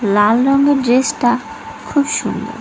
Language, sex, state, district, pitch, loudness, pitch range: Bengali, female, West Bengal, Cooch Behar, 250 Hz, -15 LUFS, 220-280 Hz